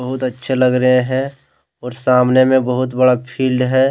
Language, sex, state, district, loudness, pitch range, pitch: Hindi, male, Jharkhand, Deoghar, -15 LUFS, 125-130 Hz, 130 Hz